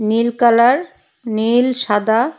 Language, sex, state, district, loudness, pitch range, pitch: Bengali, female, Assam, Hailakandi, -15 LUFS, 220-250 Hz, 235 Hz